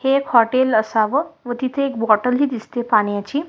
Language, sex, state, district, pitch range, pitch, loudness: Marathi, female, Maharashtra, Solapur, 220-275 Hz, 250 Hz, -18 LUFS